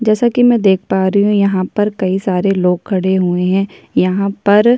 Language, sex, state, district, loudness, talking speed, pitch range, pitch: Hindi, female, Chhattisgarh, Kabirdham, -14 LUFS, 225 wpm, 185-210 Hz, 195 Hz